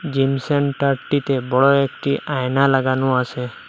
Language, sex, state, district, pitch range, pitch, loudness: Bengali, male, Assam, Hailakandi, 130-140 Hz, 135 Hz, -19 LUFS